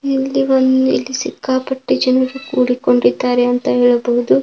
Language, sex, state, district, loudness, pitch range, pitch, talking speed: Kannada, female, Karnataka, Dakshina Kannada, -15 LUFS, 245-265 Hz, 255 Hz, 110 wpm